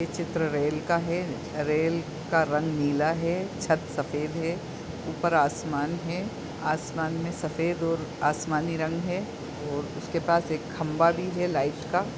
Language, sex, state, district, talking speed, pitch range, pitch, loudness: Hindi, male, Bihar, Muzaffarpur, 165 wpm, 150-170 Hz, 160 Hz, -28 LUFS